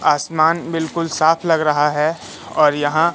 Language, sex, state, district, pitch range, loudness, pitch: Hindi, male, Madhya Pradesh, Katni, 150-165 Hz, -17 LUFS, 160 Hz